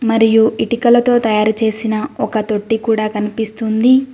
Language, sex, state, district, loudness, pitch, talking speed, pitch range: Telugu, female, Telangana, Mahabubabad, -15 LUFS, 225 Hz, 100 wpm, 215-235 Hz